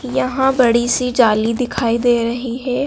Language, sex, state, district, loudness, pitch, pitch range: Hindi, female, Madhya Pradesh, Dhar, -16 LUFS, 245 Hz, 235-255 Hz